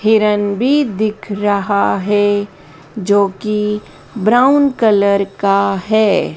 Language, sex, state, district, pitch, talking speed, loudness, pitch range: Hindi, female, Madhya Pradesh, Dhar, 205 Hz, 105 wpm, -14 LUFS, 200-215 Hz